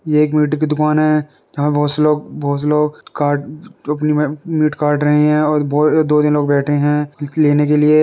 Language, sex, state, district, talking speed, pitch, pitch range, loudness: Hindi, male, Uttar Pradesh, Varanasi, 225 wpm, 150 Hz, 145-150 Hz, -15 LUFS